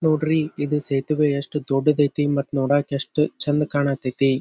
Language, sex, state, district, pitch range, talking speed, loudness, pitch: Kannada, male, Karnataka, Dharwad, 140-150 Hz, 165 wpm, -22 LUFS, 145 Hz